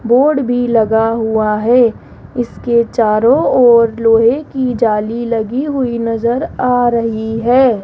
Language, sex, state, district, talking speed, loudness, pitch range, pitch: Hindi, female, Rajasthan, Jaipur, 130 wpm, -13 LUFS, 225-245 Hz, 235 Hz